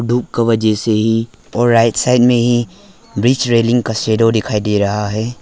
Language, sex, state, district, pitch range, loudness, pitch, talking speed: Hindi, male, Arunachal Pradesh, Lower Dibang Valley, 110-120 Hz, -14 LUFS, 115 Hz, 200 wpm